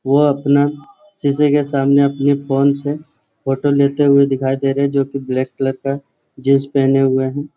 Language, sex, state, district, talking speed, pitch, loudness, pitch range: Hindi, male, Jharkhand, Sahebganj, 190 wpm, 140 Hz, -16 LUFS, 135-145 Hz